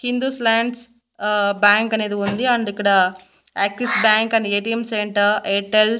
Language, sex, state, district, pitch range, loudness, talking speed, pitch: Telugu, female, Andhra Pradesh, Annamaya, 205-230 Hz, -18 LUFS, 150 wpm, 215 Hz